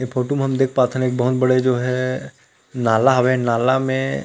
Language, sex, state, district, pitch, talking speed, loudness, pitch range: Chhattisgarhi, male, Chhattisgarh, Rajnandgaon, 130 Hz, 240 wpm, -18 LUFS, 125-130 Hz